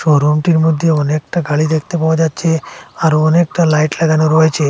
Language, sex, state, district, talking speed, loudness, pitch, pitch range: Bengali, male, Assam, Hailakandi, 165 wpm, -13 LUFS, 160 Hz, 155-165 Hz